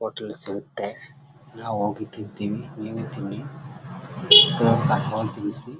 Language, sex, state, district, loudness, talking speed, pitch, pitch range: Kannada, male, Karnataka, Chamarajanagar, -21 LUFS, 95 wpm, 115 Hz, 110-145 Hz